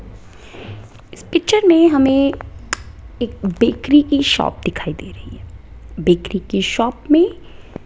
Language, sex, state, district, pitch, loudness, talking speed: Hindi, female, Rajasthan, Jaipur, 235 Hz, -16 LUFS, 130 wpm